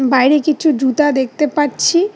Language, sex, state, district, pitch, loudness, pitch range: Bengali, female, West Bengal, Cooch Behar, 295 Hz, -14 LUFS, 265-310 Hz